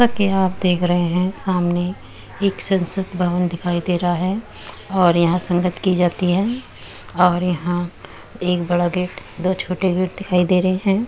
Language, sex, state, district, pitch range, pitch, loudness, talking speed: Hindi, female, Uttar Pradesh, Muzaffarnagar, 175-190 Hz, 180 Hz, -19 LUFS, 175 wpm